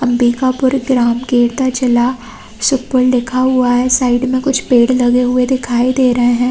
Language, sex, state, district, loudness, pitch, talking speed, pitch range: Hindi, female, Chhattisgarh, Balrampur, -13 LUFS, 250 Hz, 165 wpm, 245-255 Hz